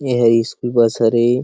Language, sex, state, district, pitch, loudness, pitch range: Chhattisgarhi, male, Chhattisgarh, Sarguja, 120 Hz, -15 LUFS, 115-120 Hz